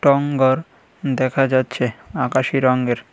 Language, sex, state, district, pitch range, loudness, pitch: Bengali, male, Tripura, West Tripura, 130-135 Hz, -19 LUFS, 130 Hz